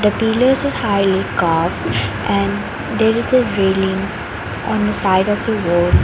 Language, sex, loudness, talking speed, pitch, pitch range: English, female, -17 LUFS, 150 wpm, 195 Hz, 175-220 Hz